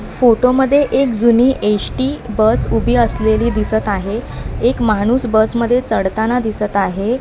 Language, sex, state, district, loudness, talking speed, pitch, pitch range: Marathi, female, Maharashtra, Mumbai Suburban, -15 LUFS, 140 wpm, 230 Hz, 215-245 Hz